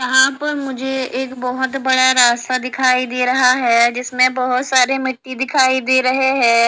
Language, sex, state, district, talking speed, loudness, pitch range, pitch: Hindi, female, Haryana, Charkhi Dadri, 170 wpm, -15 LUFS, 250-265 Hz, 255 Hz